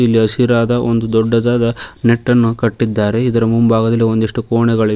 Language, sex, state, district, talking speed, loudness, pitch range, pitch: Kannada, male, Karnataka, Koppal, 110 wpm, -14 LUFS, 115-120 Hz, 115 Hz